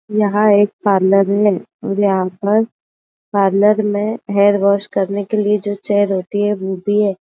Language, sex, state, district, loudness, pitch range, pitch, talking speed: Hindi, female, Maharashtra, Aurangabad, -16 LUFS, 195-210 Hz, 205 Hz, 175 wpm